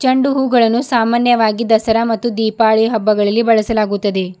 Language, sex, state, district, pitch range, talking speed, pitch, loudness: Kannada, female, Karnataka, Bidar, 215-235 Hz, 95 wpm, 225 Hz, -14 LUFS